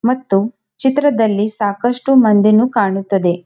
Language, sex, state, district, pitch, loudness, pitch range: Kannada, female, Karnataka, Belgaum, 215 Hz, -14 LUFS, 200-250 Hz